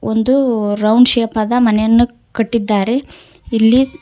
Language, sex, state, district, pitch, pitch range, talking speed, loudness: Kannada, female, Karnataka, Koppal, 230 Hz, 220-245 Hz, 105 wpm, -14 LUFS